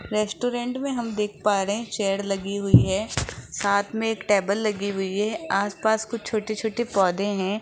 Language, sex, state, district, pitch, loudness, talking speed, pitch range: Hindi, female, Rajasthan, Jaipur, 210 Hz, -24 LUFS, 180 wpm, 200-220 Hz